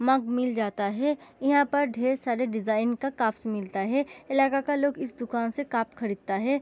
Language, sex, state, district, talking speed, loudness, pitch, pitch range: Hindi, female, Bihar, Gopalganj, 200 wpm, -27 LUFS, 250 Hz, 220-275 Hz